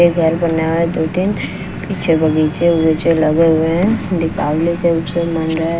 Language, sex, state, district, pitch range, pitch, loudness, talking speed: Hindi, female, Bihar, West Champaran, 160-170 Hz, 165 Hz, -15 LUFS, 175 wpm